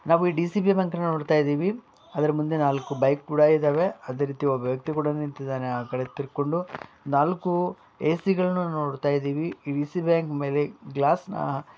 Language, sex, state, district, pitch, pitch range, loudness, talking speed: Kannada, male, Karnataka, Bellary, 150 Hz, 140-170 Hz, -25 LUFS, 170 wpm